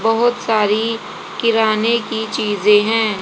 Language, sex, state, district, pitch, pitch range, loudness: Hindi, female, Haryana, Jhajjar, 220 Hz, 215-230 Hz, -16 LUFS